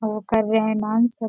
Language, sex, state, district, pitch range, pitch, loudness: Hindi, female, Bihar, Bhagalpur, 215-225 Hz, 220 Hz, -21 LUFS